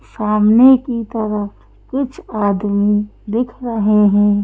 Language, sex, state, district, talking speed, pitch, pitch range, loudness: Hindi, female, Madhya Pradesh, Bhopal, 95 wpm, 210 Hz, 205-240 Hz, -16 LUFS